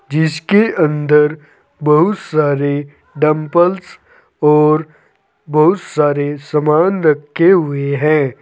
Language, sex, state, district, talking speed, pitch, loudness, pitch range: Hindi, male, Uttar Pradesh, Saharanpur, 85 wpm, 150 Hz, -14 LUFS, 145-160 Hz